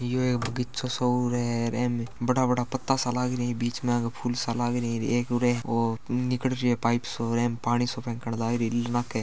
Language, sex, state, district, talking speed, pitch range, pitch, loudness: Marwari, male, Rajasthan, Churu, 200 wpm, 120-125 Hz, 120 Hz, -27 LUFS